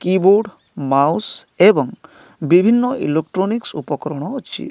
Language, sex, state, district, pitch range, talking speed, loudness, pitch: Odia, male, Odisha, Nuapada, 155-215 Hz, 90 wpm, -17 LUFS, 185 Hz